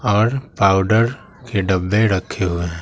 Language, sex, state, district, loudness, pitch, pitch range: Hindi, male, Bihar, Patna, -18 LUFS, 100 Hz, 95-115 Hz